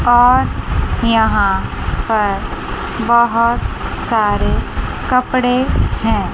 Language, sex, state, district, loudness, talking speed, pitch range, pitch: Hindi, female, Chandigarh, Chandigarh, -16 LUFS, 65 wpm, 220-250 Hz, 235 Hz